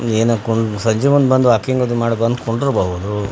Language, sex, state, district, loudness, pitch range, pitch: Kannada, male, Karnataka, Bijapur, -16 LUFS, 110-125 Hz, 115 Hz